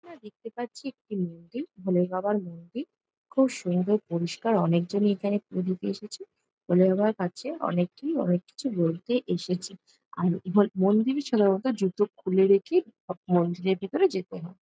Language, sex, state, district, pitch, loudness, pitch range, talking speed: Bengali, female, West Bengal, Jalpaiguri, 195 Hz, -27 LUFS, 180-240 Hz, 140 wpm